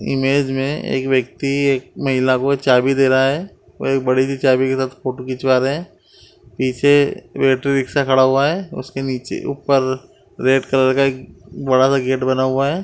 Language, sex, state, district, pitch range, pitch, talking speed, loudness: Hindi, male, Uttar Pradesh, Etah, 130-140 Hz, 135 Hz, 195 wpm, -17 LUFS